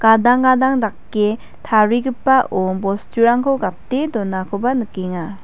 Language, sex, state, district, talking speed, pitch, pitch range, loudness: Garo, female, Meghalaya, West Garo Hills, 90 wpm, 225 Hz, 195-255 Hz, -17 LUFS